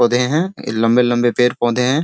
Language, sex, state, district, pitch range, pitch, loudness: Hindi, male, Bihar, Sitamarhi, 120-125 Hz, 125 Hz, -16 LUFS